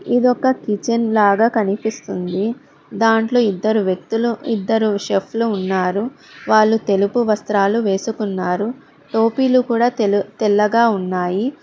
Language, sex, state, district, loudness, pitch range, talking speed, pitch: Telugu, female, Telangana, Hyderabad, -18 LUFS, 200-230 Hz, 95 wpm, 220 Hz